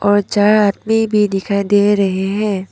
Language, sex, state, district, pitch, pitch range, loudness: Hindi, female, Arunachal Pradesh, Papum Pare, 205 Hz, 200-210 Hz, -15 LUFS